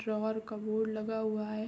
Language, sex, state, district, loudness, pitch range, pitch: Hindi, female, Jharkhand, Sahebganj, -35 LUFS, 215-220 Hz, 220 Hz